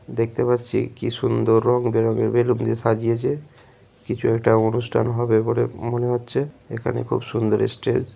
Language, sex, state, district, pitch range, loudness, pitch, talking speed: Bengali, male, West Bengal, Malda, 115-120 Hz, -21 LUFS, 115 Hz, 160 wpm